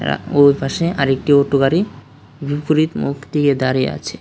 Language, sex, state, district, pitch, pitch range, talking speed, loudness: Bengali, male, Tripura, West Tripura, 140 Hz, 130-150 Hz, 140 wpm, -17 LUFS